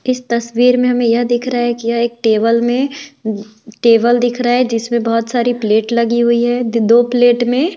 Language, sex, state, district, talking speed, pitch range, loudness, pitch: Hindi, female, Bihar, West Champaran, 210 wpm, 230-245 Hz, -14 LUFS, 240 Hz